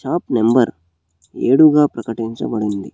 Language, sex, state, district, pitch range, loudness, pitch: Telugu, male, Telangana, Hyderabad, 85-120 Hz, -16 LUFS, 115 Hz